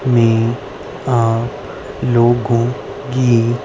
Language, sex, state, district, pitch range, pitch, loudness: Hindi, female, Haryana, Rohtak, 115-125 Hz, 120 Hz, -16 LUFS